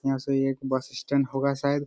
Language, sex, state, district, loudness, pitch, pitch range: Hindi, male, Jharkhand, Jamtara, -27 LUFS, 135 Hz, 135-140 Hz